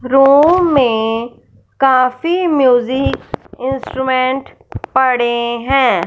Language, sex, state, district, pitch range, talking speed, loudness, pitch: Hindi, female, Punjab, Fazilka, 245-275 Hz, 70 wpm, -14 LUFS, 260 Hz